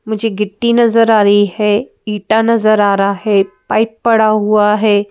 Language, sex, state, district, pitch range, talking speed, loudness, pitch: Hindi, female, Madhya Pradesh, Bhopal, 205-225 Hz, 175 wpm, -12 LUFS, 215 Hz